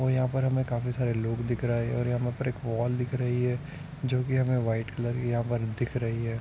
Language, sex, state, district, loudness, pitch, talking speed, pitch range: Hindi, male, Maharashtra, Dhule, -29 LUFS, 120 Hz, 280 wpm, 120-130 Hz